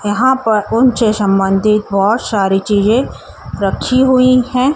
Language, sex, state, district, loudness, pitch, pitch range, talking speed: Hindi, male, Haryana, Jhajjar, -13 LUFS, 220 Hz, 200-255 Hz, 140 wpm